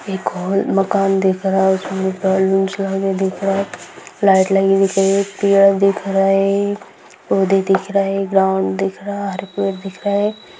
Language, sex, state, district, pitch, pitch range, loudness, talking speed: Hindi, female, Bihar, East Champaran, 195 Hz, 190-195 Hz, -17 LUFS, 190 wpm